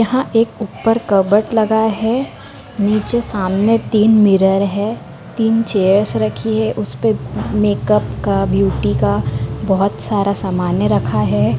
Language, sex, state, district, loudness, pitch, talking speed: Hindi, female, Chhattisgarh, Bastar, -16 LUFS, 195 Hz, 130 wpm